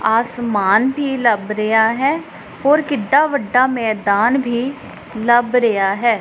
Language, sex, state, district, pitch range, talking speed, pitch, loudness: Punjabi, female, Punjab, Pathankot, 220-270 Hz, 125 wpm, 240 Hz, -16 LUFS